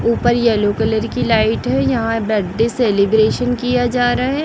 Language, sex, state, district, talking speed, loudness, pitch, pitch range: Hindi, female, Chhattisgarh, Raipur, 175 wpm, -16 LUFS, 225 Hz, 215-245 Hz